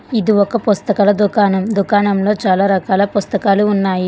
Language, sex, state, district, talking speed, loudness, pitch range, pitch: Telugu, female, Telangana, Hyderabad, 130 wpm, -14 LUFS, 195-210 Hz, 200 Hz